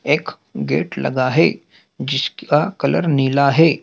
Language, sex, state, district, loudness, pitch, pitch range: Hindi, male, Madhya Pradesh, Dhar, -18 LUFS, 140 Hz, 135-160 Hz